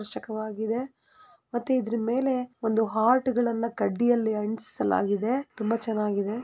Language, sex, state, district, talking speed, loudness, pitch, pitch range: Kannada, female, Karnataka, Gulbarga, 120 wpm, -27 LUFS, 230 Hz, 215-250 Hz